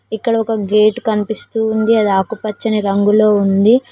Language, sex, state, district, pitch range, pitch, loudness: Telugu, female, Telangana, Mahabubabad, 210-225 Hz, 215 Hz, -15 LUFS